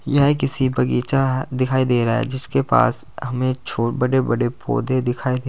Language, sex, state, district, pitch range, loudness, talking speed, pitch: Hindi, male, Uttar Pradesh, Saharanpur, 120-130 Hz, -20 LUFS, 175 wpm, 130 Hz